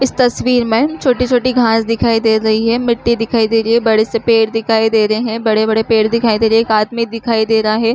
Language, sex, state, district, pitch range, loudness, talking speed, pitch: Hindi, female, Chhattisgarh, Korba, 220-235 Hz, -13 LUFS, 265 wpm, 225 Hz